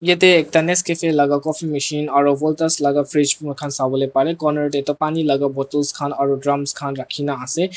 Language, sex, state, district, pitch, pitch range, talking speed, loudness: Nagamese, male, Nagaland, Dimapur, 145 Hz, 140-155 Hz, 215 wpm, -19 LUFS